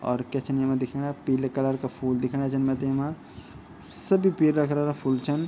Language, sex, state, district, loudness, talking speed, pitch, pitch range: Garhwali, male, Uttarakhand, Tehri Garhwal, -26 LUFS, 195 wpm, 135 Hz, 130-145 Hz